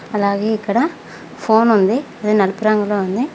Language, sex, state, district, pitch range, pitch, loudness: Telugu, female, Telangana, Mahabubabad, 205-225 Hz, 215 Hz, -16 LUFS